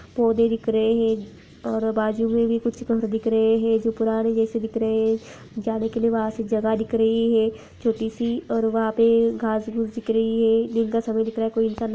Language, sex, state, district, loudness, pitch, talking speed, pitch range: Hindi, female, Bihar, Jamui, -22 LUFS, 225 Hz, 230 wpm, 225-230 Hz